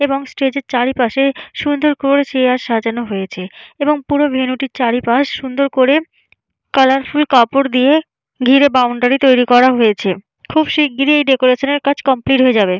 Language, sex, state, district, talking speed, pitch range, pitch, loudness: Bengali, female, West Bengal, Jalpaiguri, 155 wpm, 245-280 Hz, 265 Hz, -14 LUFS